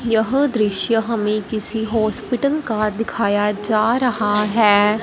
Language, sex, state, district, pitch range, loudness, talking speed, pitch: Hindi, female, Punjab, Fazilka, 210-230 Hz, -18 LUFS, 120 wpm, 220 Hz